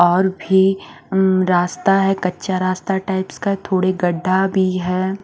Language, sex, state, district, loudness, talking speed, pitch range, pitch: Hindi, female, Haryana, Charkhi Dadri, -18 LUFS, 150 wpm, 185-195 Hz, 190 Hz